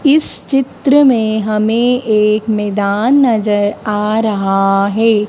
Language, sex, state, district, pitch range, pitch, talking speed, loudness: Hindi, male, Madhya Pradesh, Dhar, 210-245 Hz, 215 Hz, 115 wpm, -13 LUFS